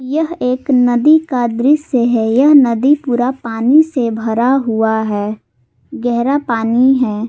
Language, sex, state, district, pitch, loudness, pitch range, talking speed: Hindi, female, Jharkhand, Palamu, 245 Hz, -13 LUFS, 225-270 Hz, 125 wpm